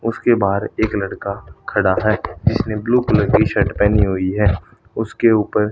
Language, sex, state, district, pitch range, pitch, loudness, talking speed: Hindi, male, Haryana, Rohtak, 100-110 Hz, 105 Hz, -18 LUFS, 170 wpm